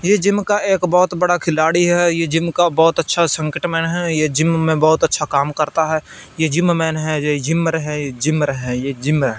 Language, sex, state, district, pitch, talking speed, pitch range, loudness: Hindi, male, Punjab, Fazilka, 160 Hz, 215 wpm, 155-175 Hz, -17 LUFS